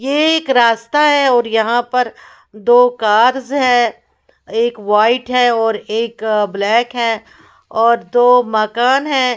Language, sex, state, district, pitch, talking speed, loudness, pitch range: Hindi, female, Bihar, West Champaran, 240 Hz, 135 wpm, -14 LUFS, 225-250 Hz